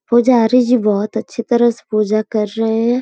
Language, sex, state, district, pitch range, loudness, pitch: Hindi, female, Uttar Pradesh, Gorakhpur, 215-240 Hz, -15 LUFS, 225 Hz